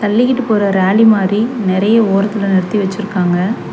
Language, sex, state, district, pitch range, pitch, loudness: Tamil, female, Tamil Nadu, Chennai, 195-220 Hz, 205 Hz, -13 LUFS